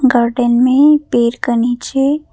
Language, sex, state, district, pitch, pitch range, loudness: Hindi, female, Arunachal Pradesh, Papum Pare, 250 Hz, 240-275 Hz, -13 LUFS